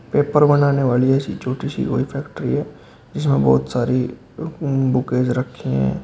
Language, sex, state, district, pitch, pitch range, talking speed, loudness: Hindi, male, Uttar Pradesh, Shamli, 130 Hz, 125-140 Hz, 150 wpm, -19 LUFS